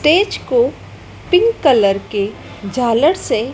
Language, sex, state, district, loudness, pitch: Hindi, female, Madhya Pradesh, Dhar, -15 LUFS, 295 Hz